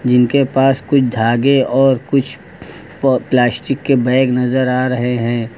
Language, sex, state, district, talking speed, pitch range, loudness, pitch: Hindi, male, Uttar Pradesh, Lucknow, 150 wpm, 125-135 Hz, -14 LUFS, 130 Hz